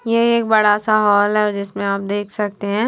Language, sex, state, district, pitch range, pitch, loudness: Hindi, female, Punjab, Fazilka, 205-215 Hz, 210 Hz, -17 LUFS